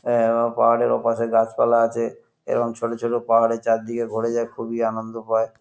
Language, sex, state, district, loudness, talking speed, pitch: Bengali, male, West Bengal, North 24 Parganas, -21 LUFS, 170 wpm, 115 Hz